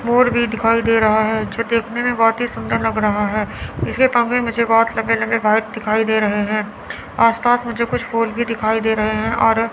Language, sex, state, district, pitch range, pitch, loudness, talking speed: Hindi, female, Chandigarh, Chandigarh, 220-235 Hz, 225 Hz, -17 LUFS, 235 wpm